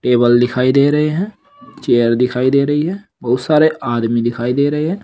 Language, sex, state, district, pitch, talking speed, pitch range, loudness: Hindi, male, Uttar Pradesh, Saharanpur, 135 Hz, 200 wpm, 120-155 Hz, -15 LUFS